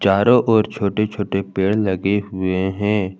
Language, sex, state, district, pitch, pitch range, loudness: Hindi, male, Jharkhand, Garhwa, 100 Hz, 95-105 Hz, -19 LUFS